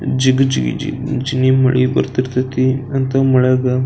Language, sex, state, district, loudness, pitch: Kannada, male, Karnataka, Belgaum, -16 LUFS, 130 Hz